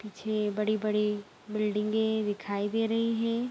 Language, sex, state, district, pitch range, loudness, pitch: Hindi, female, Bihar, Araria, 210-220 Hz, -30 LUFS, 215 Hz